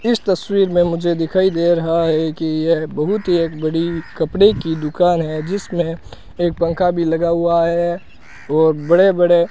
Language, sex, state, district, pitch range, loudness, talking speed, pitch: Hindi, male, Rajasthan, Bikaner, 160-180 Hz, -17 LUFS, 185 wpm, 170 Hz